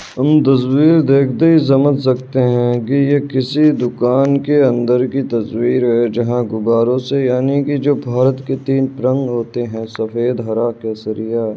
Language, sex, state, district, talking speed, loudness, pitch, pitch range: Hindi, male, Uttar Pradesh, Varanasi, 165 wpm, -15 LUFS, 125 Hz, 120-140 Hz